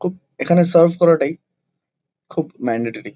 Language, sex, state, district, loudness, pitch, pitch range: Bengali, male, West Bengal, Kolkata, -17 LUFS, 165 Hz, 145-175 Hz